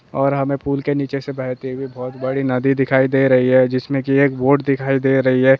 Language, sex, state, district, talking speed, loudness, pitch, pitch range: Hindi, male, Jharkhand, Jamtara, 245 wpm, -17 LUFS, 135 Hz, 130-140 Hz